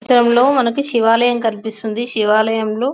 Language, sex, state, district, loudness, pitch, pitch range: Telugu, female, Telangana, Nalgonda, -15 LUFS, 230 Hz, 220-245 Hz